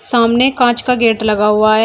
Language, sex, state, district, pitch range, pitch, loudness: Hindi, female, Uttar Pradesh, Shamli, 215-245 Hz, 230 Hz, -12 LUFS